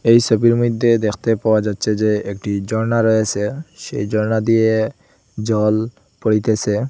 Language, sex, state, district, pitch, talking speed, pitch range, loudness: Bengali, male, Assam, Hailakandi, 110 Hz, 130 wpm, 105-115 Hz, -18 LUFS